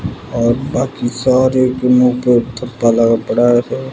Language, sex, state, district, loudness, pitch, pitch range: Hindi, male, Bihar, West Champaran, -14 LUFS, 125 Hz, 120-130 Hz